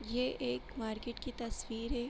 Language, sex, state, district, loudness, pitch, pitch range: Hindi, female, Jharkhand, Jamtara, -39 LUFS, 235 Hz, 225-245 Hz